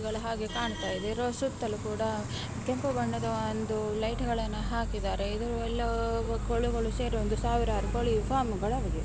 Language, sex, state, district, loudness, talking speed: Kannada, female, Karnataka, Bellary, -31 LUFS, 105 wpm